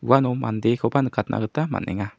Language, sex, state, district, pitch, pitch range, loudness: Garo, male, Meghalaya, South Garo Hills, 115 Hz, 110-130 Hz, -23 LUFS